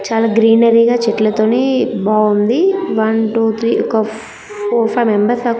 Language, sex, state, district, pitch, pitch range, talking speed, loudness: Telugu, female, Andhra Pradesh, Guntur, 225 Hz, 220-240 Hz, 150 wpm, -14 LUFS